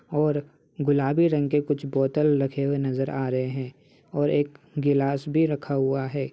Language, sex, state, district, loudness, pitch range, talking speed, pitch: Hindi, male, Uttar Pradesh, Ghazipur, -25 LUFS, 135-150 Hz, 180 wpm, 140 Hz